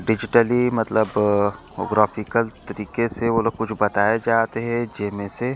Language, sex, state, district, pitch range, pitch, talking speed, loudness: Chhattisgarhi, male, Chhattisgarh, Korba, 105-115 Hz, 110 Hz, 130 wpm, -21 LUFS